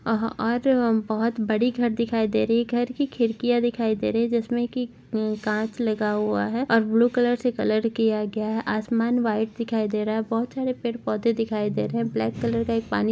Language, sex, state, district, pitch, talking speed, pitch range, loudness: Hindi, female, Chhattisgarh, Jashpur, 230 Hz, 225 wpm, 220-240 Hz, -24 LUFS